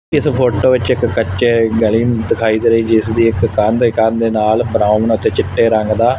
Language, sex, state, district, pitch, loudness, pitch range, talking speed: Punjabi, male, Punjab, Fazilka, 115 Hz, -13 LUFS, 110-120 Hz, 205 wpm